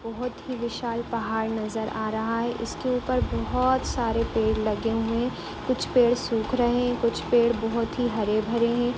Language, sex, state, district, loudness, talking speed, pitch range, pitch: Hindi, female, Bihar, Saran, -26 LUFS, 180 wpm, 225-245 Hz, 235 Hz